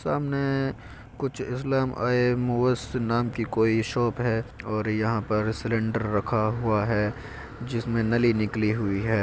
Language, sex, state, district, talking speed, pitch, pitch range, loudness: Hindi, male, Uttar Pradesh, Jyotiba Phule Nagar, 145 wpm, 115 Hz, 110-125 Hz, -26 LUFS